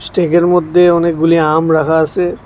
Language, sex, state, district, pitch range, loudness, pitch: Bengali, male, Tripura, West Tripura, 160-175 Hz, -12 LUFS, 170 Hz